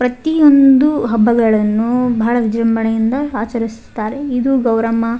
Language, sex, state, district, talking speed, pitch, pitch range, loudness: Kannada, female, Karnataka, Raichur, 90 wpm, 235 Hz, 225-265 Hz, -14 LUFS